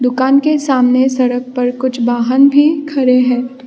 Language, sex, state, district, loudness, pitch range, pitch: Hindi, female, Assam, Kamrup Metropolitan, -12 LUFS, 250-275 Hz, 255 Hz